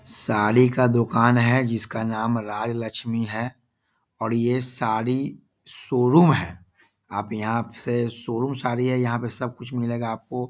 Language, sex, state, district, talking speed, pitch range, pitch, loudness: Hindi, male, Bihar, East Champaran, 145 wpm, 115-125 Hz, 120 Hz, -23 LUFS